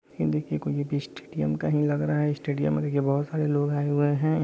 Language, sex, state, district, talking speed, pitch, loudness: Bhojpuri, male, Bihar, Saran, 230 wpm, 145 Hz, -26 LUFS